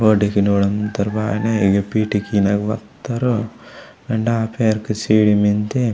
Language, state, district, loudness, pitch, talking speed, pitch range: Gondi, Chhattisgarh, Sukma, -18 LUFS, 110 Hz, 110 wpm, 105-110 Hz